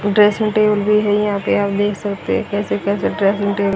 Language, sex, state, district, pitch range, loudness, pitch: Hindi, female, Haryana, Charkhi Dadri, 200-210 Hz, -17 LUFS, 205 Hz